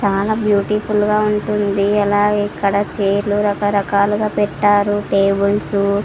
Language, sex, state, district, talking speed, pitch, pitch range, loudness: Telugu, female, Andhra Pradesh, Sri Satya Sai, 110 wpm, 205 Hz, 200-210 Hz, -16 LUFS